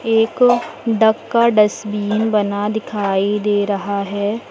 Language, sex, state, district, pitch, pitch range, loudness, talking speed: Hindi, female, Uttar Pradesh, Lucknow, 210 Hz, 205-225 Hz, -17 LUFS, 120 wpm